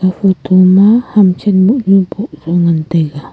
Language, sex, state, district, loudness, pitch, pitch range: Wancho, female, Arunachal Pradesh, Longding, -10 LUFS, 185 Hz, 170-200 Hz